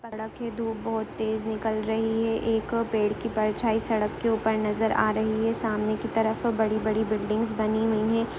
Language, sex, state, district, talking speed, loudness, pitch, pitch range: Hindi, female, Maharashtra, Solapur, 200 wpm, -27 LUFS, 220 Hz, 215-225 Hz